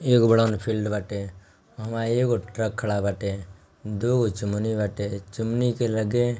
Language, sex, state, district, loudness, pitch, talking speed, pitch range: Bhojpuri, male, Bihar, Gopalganj, -25 LUFS, 110 Hz, 170 wpm, 100-115 Hz